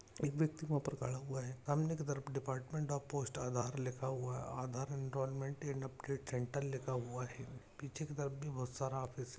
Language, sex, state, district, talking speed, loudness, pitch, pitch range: Hindi, male, Maharashtra, Aurangabad, 190 wpm, -42 LUFS, 135 Hz, 130-140 Hz